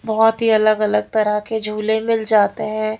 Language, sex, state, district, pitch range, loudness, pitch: Hindi, female, Haryana, Rohtak, 215-220 Hz, -17 LUFS, 215 Hz